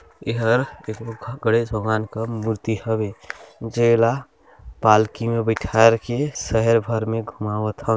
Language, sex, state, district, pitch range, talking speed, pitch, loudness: Hindi, male, Chhattisgarh, Balrampur, 110-115 Hz, 120 wpm, 115 Hz, -21 LUFS